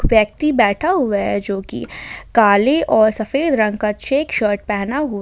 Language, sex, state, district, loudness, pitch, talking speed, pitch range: Hindi, female, Jharkhand, Ranchi, -17 LUFS, 220 Hz, 160 wpm, 205-275 Hz